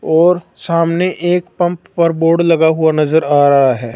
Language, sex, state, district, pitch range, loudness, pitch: Hindi, male, Punjab, Fazilka, 160-175 Hz, -13 LUFS, 165 Hz